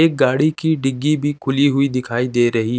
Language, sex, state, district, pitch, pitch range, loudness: Hindi, male, Chandigarh, Chandigarh, 135 Hz, 125-150 Hz, -18 LUFS